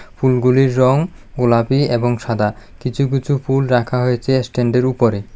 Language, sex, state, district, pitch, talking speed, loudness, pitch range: Bengali, male, Tripura, South Tripura, 125 Hz, 145 wpm, -17 LUFS, 120-135 Hz